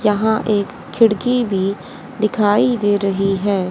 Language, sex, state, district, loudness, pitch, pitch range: Hindi, female, Haryana, Rohtak, -17 LUFS, 210 Hz, 200-225 Hz